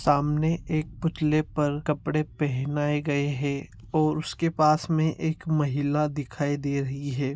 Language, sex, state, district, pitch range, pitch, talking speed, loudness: Hindi, male, Bihar, Darbhanga, 145-155 Hz, 150 Hz, 145 wpm, -26 LUFS